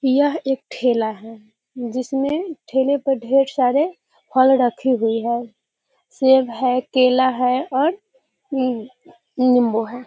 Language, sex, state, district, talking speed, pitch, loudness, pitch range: Hindi, female, Bihar, Muzaffarpur, 125 wpm, 255 Hz, -19 LUFS, 245-275 Hz